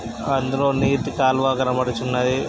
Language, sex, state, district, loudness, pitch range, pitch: Telugu, male, Andhra Pradesh, Krishna, -21 LUFS, 125-135 Hz, 130 Hz